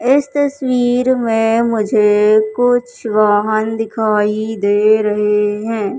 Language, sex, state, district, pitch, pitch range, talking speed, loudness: Hindi, male, Madhya Pradesh, Katni, 220 Hz, 210-245 Hz, 100 wpm, -14 LUFS